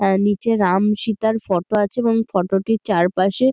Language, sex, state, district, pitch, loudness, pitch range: Bengali, female, West Bengal, Dakshin Dinajpur, 205 Hz, -19 LUFS, 195-225 Hz